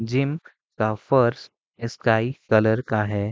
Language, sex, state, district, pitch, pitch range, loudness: Hindi, male, Bihar, Gopalganj, 115 Hz, 110-125 Hz, -22 LUFS